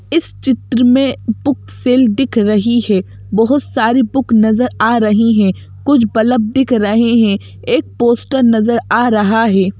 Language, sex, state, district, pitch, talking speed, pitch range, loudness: Hindi, female, Madhya Pradesh, Bhopal, 230 Hz, 160 wpm, 215-250 Hz, -13 LUFS